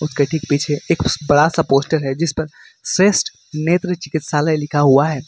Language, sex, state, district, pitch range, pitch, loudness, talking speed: Hindi, male, Jharkhand, Ranchi, 145-165 Hz, 150 Hz, -17 LUFS, 160 wpm